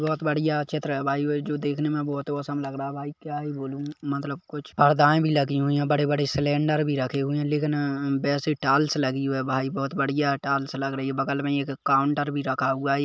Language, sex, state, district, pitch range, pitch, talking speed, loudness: Hindi, male, Chhattisgarh, Kabirdham, 140-150 Hz, 145 Hz, 240 wpm, -25 LUFS